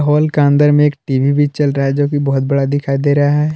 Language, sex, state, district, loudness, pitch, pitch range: Hindi, male, Jharkhand, Palamu, -14 LUFS, 145 Hz, 140-145 Hz